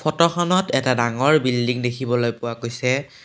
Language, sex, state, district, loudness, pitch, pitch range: Assamese, male, Assam, Kamrup Metropolitan, -20 LUFS, 125 Hz, 120-155 Hz